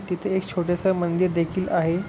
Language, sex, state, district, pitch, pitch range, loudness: Marathi, male, Maharashtra, Pune, 180 Hz, 175-190 Hz, -24 LUFS